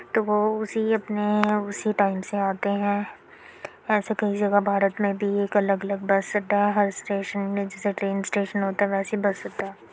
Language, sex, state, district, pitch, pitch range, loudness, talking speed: Hindi, female, Uttar Pradesh, Jyotiba Phule Nagar, 205 Hz, 200-210 Hz, -24 LUFS, 205 wpm